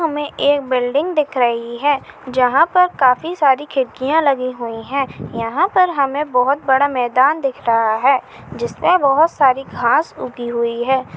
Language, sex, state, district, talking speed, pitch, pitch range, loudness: Chhattisgarhi, female, Chhattisgarh, Kabirdham, 160 wpm, 270 Hz, 250-295 Hz, -17 LUFS